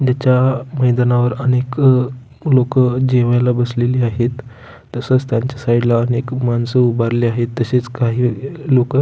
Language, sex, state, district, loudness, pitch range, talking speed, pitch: Marathi, male, Maharashtra, Pune, -16 LUFS, 120-130 Hz, 135 wpm, 125 Hz